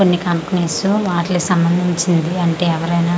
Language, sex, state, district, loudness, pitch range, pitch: Telugu, female, Andhra Pradesh, Manyam, -16 LUFS, 170-180 Hz, 175 Hz